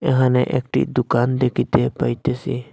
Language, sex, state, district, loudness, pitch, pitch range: Bengali, male, Assam, Hailakandi, -20 LUFS, 125 Hz, 125-130 Hz